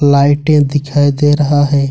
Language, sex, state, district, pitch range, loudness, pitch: Hindi, male, Jharkhand, Ranchi, 140-145 Hz, -11 LUFS, 145 Hz